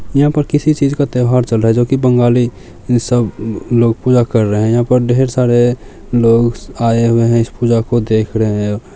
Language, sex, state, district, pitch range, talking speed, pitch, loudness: Maithili, male, Bihar, Samastipur, 115-125 Hz, 210 wpm, 120 Hz, -13 LUFS